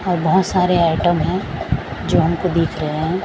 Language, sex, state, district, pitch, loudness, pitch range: Hindi, female, Chhattisgarh, Raipur, 170 Hz, -18 LUFS, 165-180 Hz